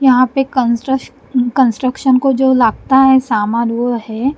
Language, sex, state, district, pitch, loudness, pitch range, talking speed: Hindi, female, Punjab, Kapurthala, 255 Hz, -14 LUFS, 235-265 Hz, 150 wpm